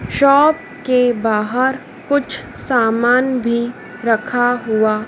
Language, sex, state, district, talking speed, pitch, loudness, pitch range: Hindi, female, Madhya Pradesh, Dhar, 95 wpm, 245 Hz, -16 LUFS, 230-265 Hz